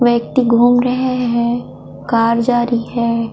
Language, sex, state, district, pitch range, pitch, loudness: Hindi, female, Chhattisgarh, Kabirdham, 235-245 Hz, 240 Hz, -15 LUFS